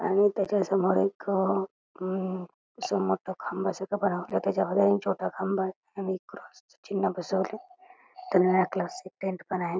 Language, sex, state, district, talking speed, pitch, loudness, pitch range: Marathi, female, Karnataka, Belgaum, 160 wpm, 190 Hz, -28 LUFS, 180-195 Hz